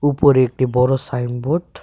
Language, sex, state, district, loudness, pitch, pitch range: Bengali, male, Tripura, West Tripura, -17 LUFS, 130 Hz, 125-140 Hz